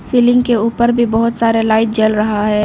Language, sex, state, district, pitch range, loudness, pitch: Hindi, female, Arunachal Pradesh, Lower Dibang Valley, 220-235 Hz, -13 LUFS, 225 Hz